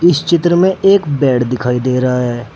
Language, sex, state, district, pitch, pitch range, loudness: Hindi, male, Uttar Pradesh, Saharanpur, 135 Hz, 125-175 Hz, -13 LUFS